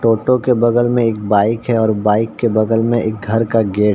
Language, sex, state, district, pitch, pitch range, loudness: Hindi, male, Uttar Pradesh, Ghazipur, 115 Hz, 110-120 Hz, -15 LUFS